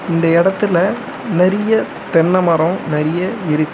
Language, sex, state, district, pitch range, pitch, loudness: Tamil, male, Tamil Nadu, Chennai, 165-195 Hz, 180 Hz, -15 LUFS